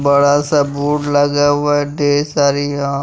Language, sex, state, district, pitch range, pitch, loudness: Hindi, male, Bihar, West Champaran, 140-145 Hz, 145 Hz, -15 LUFS